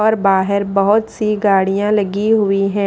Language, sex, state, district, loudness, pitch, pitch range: Hindi, female, Haryana, Rohtak, -15 LUFS, 200 Hz, 195-215 Hz